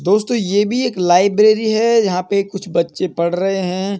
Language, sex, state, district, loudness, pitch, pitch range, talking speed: Hindi, male, Uttar Pradesh, Budaun, -16 LUFS, 195 Hz, 185-215 Hz, 195 wpm